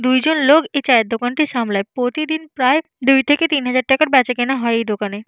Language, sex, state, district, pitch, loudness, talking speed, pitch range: Bengali, female, Jharkhand, Jamtara, 265 Hz, -16 LUFS, 205 wpm, 245-295 Hz